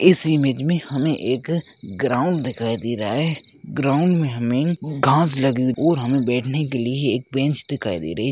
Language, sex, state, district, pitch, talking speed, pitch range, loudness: Hindi, male, Rajasthan, Churu, 140 Hz, 185 wpm, 125-155 Hz, -21 LUFS